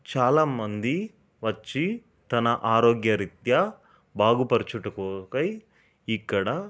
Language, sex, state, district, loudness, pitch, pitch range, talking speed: Telugu, male, Telangana, Nalgonda, -25 LUFS, 115 Hz, 110-165 Hz, 80 wpm